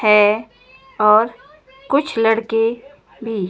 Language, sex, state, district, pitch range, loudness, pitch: Hindi, female, Himachal Pradesh, Shimla, 210-265 Hz, -17 LUFS, 225 Hz